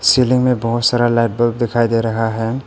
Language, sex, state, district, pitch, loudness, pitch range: Hindi, male, Arunachal Pradesh, Papum Pare, 120 Hz, -16 LUFS, 115-120 Hz